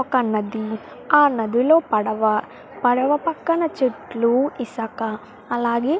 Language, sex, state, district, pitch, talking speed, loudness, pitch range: Telugu, female, Andhra Pradesh, Krishna, 240 Hz, 110 wpm, -21 LUFS, 220-285 Hz